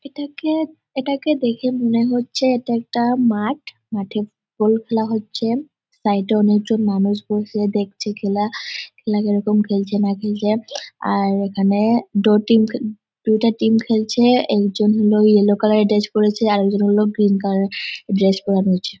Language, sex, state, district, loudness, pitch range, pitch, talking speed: Bengali, female, West Bengal, Dakshin Dinajpur, -18 LUFS, 205-235 Hz, 215 Hz, 160 wpm